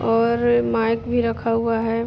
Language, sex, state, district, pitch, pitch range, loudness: Hindi, female, Jharkhand, Jamtara, 230 Hz, 225-235 Hz, -20 LUFS